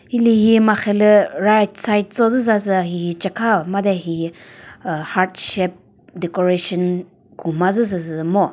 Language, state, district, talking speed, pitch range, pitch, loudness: Chakhesang, Nagaland, Dimapur, 110 wpm, 180-210 Hz, 190 Hz, -18 LUFS